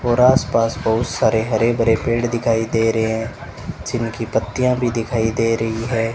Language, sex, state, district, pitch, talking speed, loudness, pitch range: Hindi, male, Rajasthan, Bikaner, 115 Hz, 175 wpm, -19 LUFS, 115-120 Hz